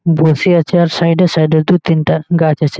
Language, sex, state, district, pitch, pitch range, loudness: Bengali, male, West Bengal, Malda, 165 Hz, 160-175 Hz, -12 LUFS